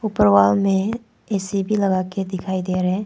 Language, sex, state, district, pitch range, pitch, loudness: Hindi, female, Arunachal Pradesh, Papum Pare, 185-200 Hz, 190 Hz, -20 LUFS